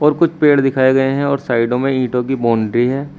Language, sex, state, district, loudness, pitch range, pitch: Hindi, male, Uttar Pradesh, Shamli, -15 LUFS, 125-140 Hz, 135 Hz